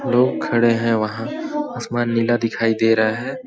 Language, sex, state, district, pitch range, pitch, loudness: Hindi, male, Chhattisgarh, Balrampur, 115-125 Hz, 120 Hz, -19 LUFS